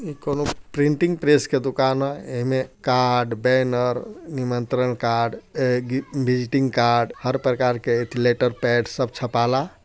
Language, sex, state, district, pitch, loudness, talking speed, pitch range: Bhojpuri, male, Bihar, Gopalganj, 125 Hz, -22 LUFS, 130 wpm, 120-135 Hz